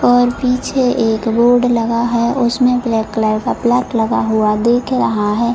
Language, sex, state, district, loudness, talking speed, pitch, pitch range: Hindi, female, Chhattisgarh, Bilaspur, -15 LUFS, 175 wpm, 235 Hz, 225-245 Hz